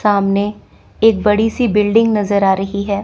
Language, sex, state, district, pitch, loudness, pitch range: Hindi, female, Chandigarh, Chandigarh, 205 Hz, -15 LUFS, 200-220 Hz